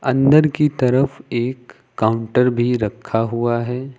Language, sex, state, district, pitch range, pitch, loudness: Hindi, male, Uttar Pradesh, Lucknow, 120-135 Hz, 125 Hz, -18 LUFS